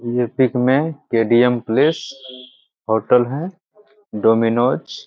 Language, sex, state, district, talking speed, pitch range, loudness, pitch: Hindi, male, Bihar, Begusarai, 105 wpm, 120-140 Hz, -17 LUFS, 125 Hz